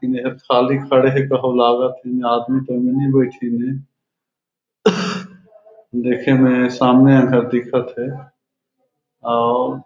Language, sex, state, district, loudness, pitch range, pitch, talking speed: Chhattisgarhi, male, Chhattisgarh, Raigarh, -16 LUFS, 125-135 Hz, 130 Hz, 110 wpm